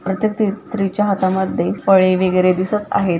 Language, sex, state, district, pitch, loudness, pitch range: Marathi, female, Maharashtra, Chandrapur, 190 Hz, -17 LUFS, 185-210 Hz